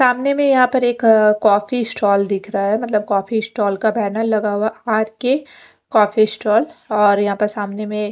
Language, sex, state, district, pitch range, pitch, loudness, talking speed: Hindi, female, Punjab, Fazilka, 210-240 Hz, 215 Hz, -17 LUFS, 200 wpm